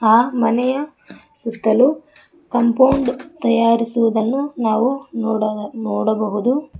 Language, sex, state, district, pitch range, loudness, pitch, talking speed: Kannada, female, Karnataka, Koppal, 225-275 Hz, -18 LUFS, 240 Hz, 70 wpm